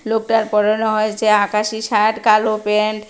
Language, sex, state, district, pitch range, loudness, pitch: Bengali, female, Tripura, West Tripura, 210-220 Hz, -16 LUFS, 215 Hz